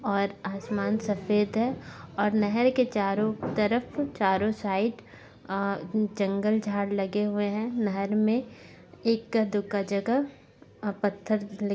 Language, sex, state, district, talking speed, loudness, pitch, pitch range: Bhojpuri, female, Bihar, Saran, 130 wpm, -28 LUFS, 210 Hz, 200-220 Hz